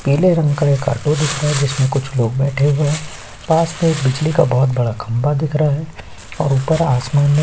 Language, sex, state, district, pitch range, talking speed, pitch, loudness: Hindi, male, Chhattisgarh, Korba, 135-155 Hz, 210 wpm, 145 Hz, -17 LUFS